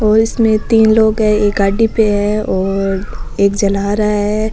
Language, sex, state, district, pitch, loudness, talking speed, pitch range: Rajasthani, female, Rajasthan, Nagaur, 210 Hz, -13 LUFS, 200 wpm, 200-220 Hz